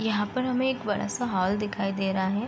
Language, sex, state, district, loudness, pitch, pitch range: Hindi, female, Bihar, Gopalganj, -27 LUFS, 210 Hz, 195-245 Hz